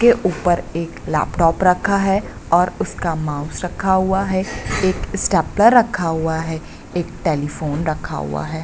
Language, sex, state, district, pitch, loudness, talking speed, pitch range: Hindi, female, Bihar, Bhagalpur, 175 Hz, -19 LUFS, 155 wpm, 160-190 Hz